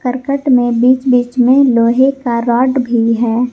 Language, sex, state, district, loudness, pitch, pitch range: Hindi, female, Jharkhand, Garhwa, -12 LUFS, 250 Hz, 235-260 Hz